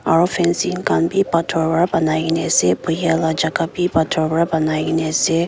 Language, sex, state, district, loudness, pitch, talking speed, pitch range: Nagamese, female, Nagaland, Kohima, -18 LUFS, 165 Hz, 220 wpm, 160-170 Hz